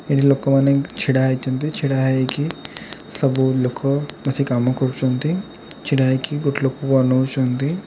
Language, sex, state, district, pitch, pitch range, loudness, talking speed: Odia, male, Odisha, Khordha, 135 Hz, 130-140 Hz, -19 LUFS, 115 wpm